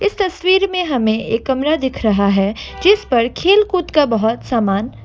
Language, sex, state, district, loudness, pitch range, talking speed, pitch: Hindi, female, Assam, Kamrup Metropolitan, -16 LUFS, 225-365 Hz, 180 wpm, 265 Hz